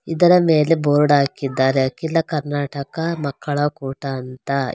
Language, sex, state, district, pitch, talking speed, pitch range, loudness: Kannada, female, Karnataka, Bangalore, 145 Hz, 115 wpm, 135-160 Hz, -19 LUFS